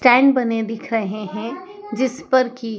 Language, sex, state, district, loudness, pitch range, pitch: Hindi, female, Madhya Pradesh, Dhar, -20 LUFS, 225-260 Hz, 245 Hz